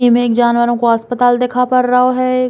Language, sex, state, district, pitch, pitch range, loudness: Bundeli, female, Uttar Pradesh, Hamirpur, 245 Hz, 240-250 Hz, -13 LUFS